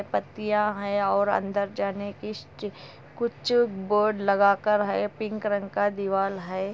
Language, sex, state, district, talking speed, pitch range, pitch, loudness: Hindi, female, Andhra Pradesh, Anantapur, 150 wpm, 195-210 Hz, 205 Hz, -26 LUFS